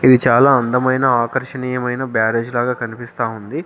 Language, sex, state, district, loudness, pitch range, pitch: Telugu, male, Telangana, Komaram Bheem, -17 LUFS, 115-130 Hz, 125 Hz